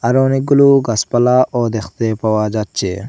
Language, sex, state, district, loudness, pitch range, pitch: Bengali, male, Assam, Hailakandi, -15 LUFS, 110-130 Hz, 115 Hz